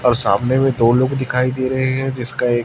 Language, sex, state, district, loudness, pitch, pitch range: Hindi, male, Chhattisgarh, Raipur, -17 LUFS, 125 Hz, 120-130 Hz